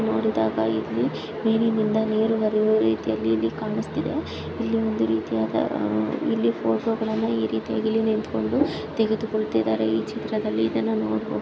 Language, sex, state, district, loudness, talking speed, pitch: Kannada, female, Karnataka, Chamarajanagar, -24 LUFS, 130 wpm, 110 Hz